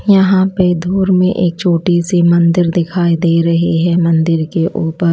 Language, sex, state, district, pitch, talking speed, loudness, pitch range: Hindi, female, Odisha, Malkangiri, 175 Hz, 175 wpm, -13 LUFS, 170-180 Hz